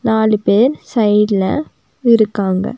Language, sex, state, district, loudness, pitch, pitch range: Tamil, female, Tamil Nadu, Nilgiris, -14 LUFS, 215 Hz, 200-235 Hz